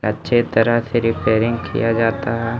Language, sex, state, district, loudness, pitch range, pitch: Hindi, male, Bihar, Gaya, -18 LUFS, 115-120 Hz, 115 Hz